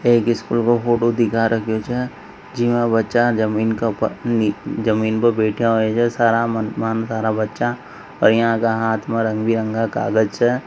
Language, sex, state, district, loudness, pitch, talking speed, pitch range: Marwari, male, Rajasthan, Nagaur, -19 LUFS, 115 Hz, 175 wpm, 110-120 Hz